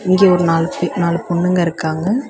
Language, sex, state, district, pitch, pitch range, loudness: Tamil, female, Tamil Nadu, Chennai, 175 Hz, 170-185 Hz, -16 LUFS